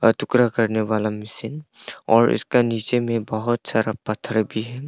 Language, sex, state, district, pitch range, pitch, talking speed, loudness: Hindi, male, Arunachal Pradesh, Longding, 110-120 Hz, 115 Hz, 160 wpm, -21 LUFS